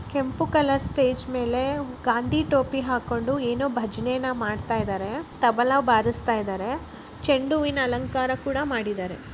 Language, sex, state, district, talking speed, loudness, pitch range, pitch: Kannada, male, Karnataka, Raichur, 120 wpm, -24 LUFS, 235-275 Hz, 255 Hz